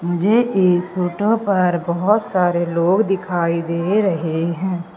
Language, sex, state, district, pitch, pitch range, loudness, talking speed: Hindi, female, Madhya Pradesh, Umaria, 180 Hz, 170-195 Hz, -18 LUFS, 130 wpm